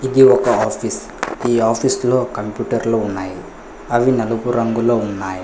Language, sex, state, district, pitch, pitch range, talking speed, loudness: Telugu, male, Telangana, Hyderabad, 115 Hz, 105-125 Hz, 130 wpm, -17 LUFS